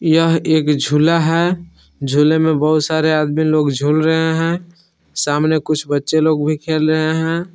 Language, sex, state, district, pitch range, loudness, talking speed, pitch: Hindi, male, Jharkhand, Palamu, 150-160 Hz, -16 LUFS, 165 wpm, 155 Hz